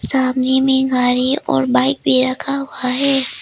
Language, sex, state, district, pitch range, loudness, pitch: Hindi, female, Arunachal Pradesh, Lower Dibang Valley, 250-270 Hz, -16 LUFS, 255 Hz